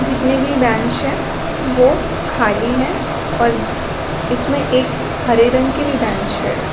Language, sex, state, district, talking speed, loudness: Hindi, female, Chhattisgarh, Raigarh, 145 wpm, -16 LUFS